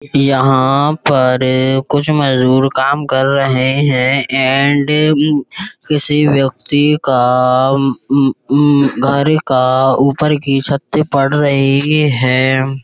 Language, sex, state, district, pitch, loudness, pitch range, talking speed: Hindi, male, Uttar Pradesh, Budaun, 135 Hz, -12 LUFS, 130-145 Hz, 110 wpm